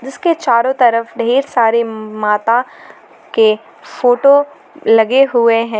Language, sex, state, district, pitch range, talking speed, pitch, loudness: Hindi, female, Jharkhand, Garhwa, 225-260 Hz, 115 wpm, 235 Hz, -13 LUFS